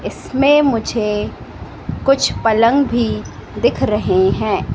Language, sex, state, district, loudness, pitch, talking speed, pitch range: Hindi, female, Madhya Pradesh, Katni, -16 LUFS, 255 Hz, 100 wpm, 225-280 Hz